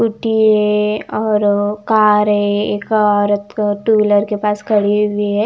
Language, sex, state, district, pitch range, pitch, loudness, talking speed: Hindi, female, Himachal Pradesh, Shimla, 205-215 Hz, 210 Hz, -15 LUFS, 155 wpm